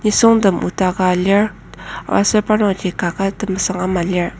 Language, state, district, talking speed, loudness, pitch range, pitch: Ao, Nagaland, Kohima, 135 wpm, -16 LUFS, 185-210 Hz, 195 Hz